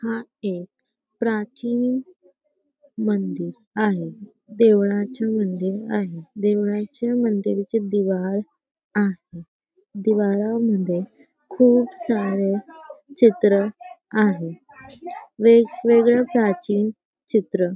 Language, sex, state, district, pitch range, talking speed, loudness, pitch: Marathi, female, Maharashtra, Sindhudurg, 200-240 Hz, 75 wpm, -21 LUFS, 215 Hz